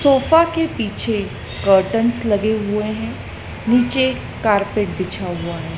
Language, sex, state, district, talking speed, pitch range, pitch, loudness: Hindi, female, Madhya Pradesh, Dhar, 125 wpm, 200-245 Hz, 215 Hz, -19 LUFS